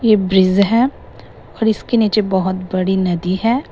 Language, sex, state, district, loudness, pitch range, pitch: Hindi, female, Assam, Sonitpur, -16 LUFS, 185-225 Hz, 200 Hz